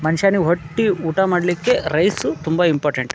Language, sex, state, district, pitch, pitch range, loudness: Kannada, male, Karnataka, Dharwad, 170 Hz, 160-190 Hz, -18 LUFS